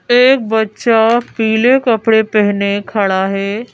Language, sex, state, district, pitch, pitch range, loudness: Hindi, female, Madhya Pradesh, Bhopal, 220 Hz, 205-235 Hz, -13 LUFS